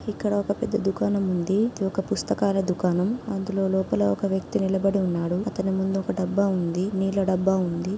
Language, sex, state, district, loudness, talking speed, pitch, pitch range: Telugu, female, Telangana, Nalgonda, -25 LUFS, 175 wpm, 195 Hz, 185-200 Hz